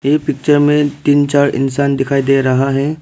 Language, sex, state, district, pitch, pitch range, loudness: Hindi, male, Arunachal Pradesh, Papum Pare, 140 Hz, 135-145 Hz, -13 LUFS